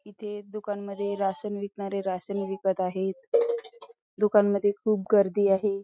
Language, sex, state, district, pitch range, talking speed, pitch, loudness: Marathi, female, Maharashtra, Chandrapur, 195-210 Hz, 135 wpm, 200 Hz, -27 LUFS